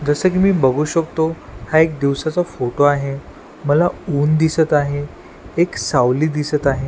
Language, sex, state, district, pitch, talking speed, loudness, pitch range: Marathi, male, Maharashtra, Washim, 150 Hz, 155 wpm, -17 LUFS, 140-160 Hz